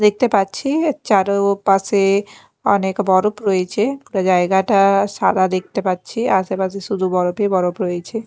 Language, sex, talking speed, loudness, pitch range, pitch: Bengali, female, 140 wpm, -17 LUFS, 190-205 Hz, 195 Hz